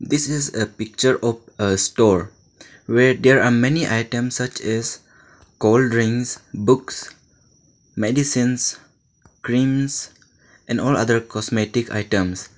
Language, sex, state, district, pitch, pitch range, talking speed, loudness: English, male, Arunachal Pradesh, Lower Dibang Valley, 120 Hz, 110-130 Hz, 115 wpm, -19 LUFS